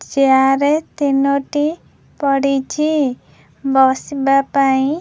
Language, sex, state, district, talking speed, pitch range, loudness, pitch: Odia, female, Odisha, Khordha, 70 wpm, 270-290 Hz, -16 LUFS, 275 Hz